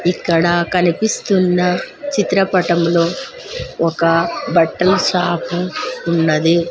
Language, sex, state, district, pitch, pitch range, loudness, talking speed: Telugu, female, Andhra Pradesh, Sri Satya Sai, 175 Hz, 170-190 Hz, -16 LUFS, 65 wpm